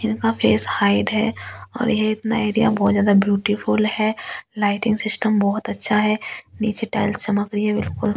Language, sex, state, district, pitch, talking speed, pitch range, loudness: Hindi, female, Delhi, New Delhi, 215 Hz, 170 wpm, 205-220 Hz, -19 LUFS